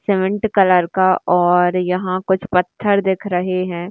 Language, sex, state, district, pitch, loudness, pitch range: Hindi, female, Maharashtra, Chandrapur, 185 Hz, -17 LUFS, 180-190 Hz